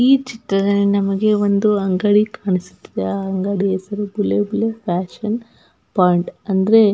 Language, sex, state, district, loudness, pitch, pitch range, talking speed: Kannada, female, Karnataka, Belgaum, -18 LUFS, 200 Hz, 190-215 Hz, 130 wpm